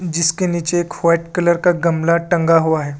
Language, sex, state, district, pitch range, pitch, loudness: Hindi, male, Assam, Kamrup Metropolitan, 165-175 Hz, 170 Hz, -16 LUFS